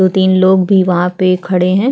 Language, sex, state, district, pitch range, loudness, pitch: Hindi, female, Chhattisgarh, Sukma, 185-190 Hz, -12 LUFS, 185 Hz